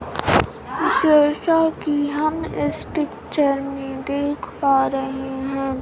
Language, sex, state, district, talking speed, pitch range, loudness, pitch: Hindi, female, Bihar, Kaimur, 105 wpm, 270-310 Hz, -21 LUFS, 285 Hz